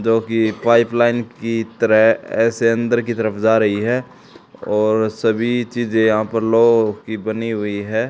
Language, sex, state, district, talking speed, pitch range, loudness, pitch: Hindi, male, Haryana, Charkhi Dadri, 170 wpm, 110-115 Hz, -17 LUFS, 115 Hz